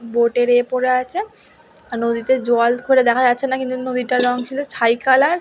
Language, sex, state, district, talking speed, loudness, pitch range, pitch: Bengali, female, West Bengal, Dakshin Dinajpur, 200 wpm, -17 LUFS, 240-260 Hz, 250 Hz